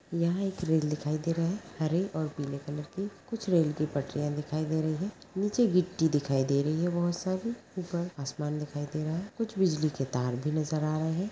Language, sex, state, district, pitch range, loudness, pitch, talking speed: Magahi, female, Bihar, Gaya, 150-185 Hz, -31 LUFS, 160 Hz, 230 wpm